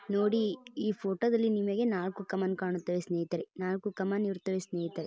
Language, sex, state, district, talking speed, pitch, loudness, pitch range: Kannada, female, Karnataka, Bijapur, 155 wpm, 195 Hz, -32 LUFS, 180-210 Hz